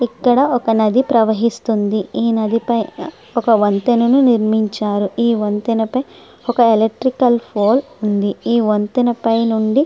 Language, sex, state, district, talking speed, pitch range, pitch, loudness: Telugu, female, Andhra Pradesh, Srikakulam, 120 wpm, 215-245 Hz, 230 Hz, -16 LUFS